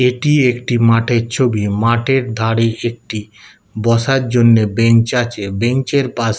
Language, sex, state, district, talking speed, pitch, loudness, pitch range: Bengali, male, West Bengal, Kolkata, 140 wpm, 115 Hz, -15 LUFS, 115-125 Hz